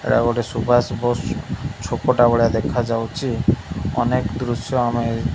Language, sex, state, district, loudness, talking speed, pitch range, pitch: Odia, male, Odisha, Malkangiri, -20 LUFS, 135 wpm, 115-120 Hz, 120 Hz